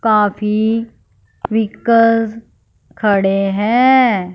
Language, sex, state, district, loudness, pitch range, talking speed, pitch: Hindi, female, Punjab, Fazilka, -14 LUFS, 195-230 Hz, 55 wpm, 215 Hz